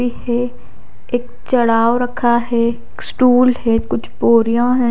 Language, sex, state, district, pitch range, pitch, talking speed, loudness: Hindi, female, Odisha, Khordha, 235-245 Hz, 240 Hz, 120 wpm, -16 LUFS